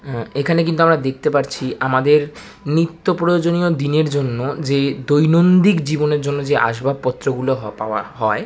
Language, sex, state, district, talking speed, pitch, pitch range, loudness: Bengali, male, West Bengal, Kolkata, 135 wpm, 145 Hz, 135-165 Hz, -17 LUFS